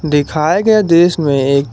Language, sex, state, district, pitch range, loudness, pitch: Hindi, male, Jharkhand, Garhwa, 140-175 Hz, -12 LUFS, 155 Hz